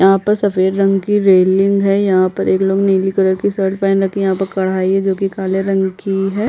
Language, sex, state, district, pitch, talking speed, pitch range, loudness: Hindi, female, Chhattisgarh, Bastar, 195 Hz, 250 wpm, 190-195 Hz, -15 LUFS